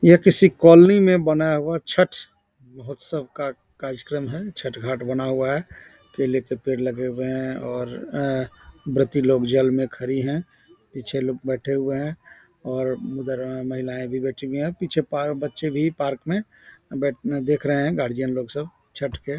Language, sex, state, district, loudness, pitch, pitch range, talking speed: Hindi, male, Bihar, Samastipur, -22 LUFS, 135 Hz, 130-155 Hz, 190 wpm